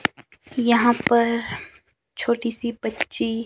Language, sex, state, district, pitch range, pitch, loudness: Hindi, male, Himachal Pradesh, Shimla, 235-240 Hz, 235 Hz, -22 LUFS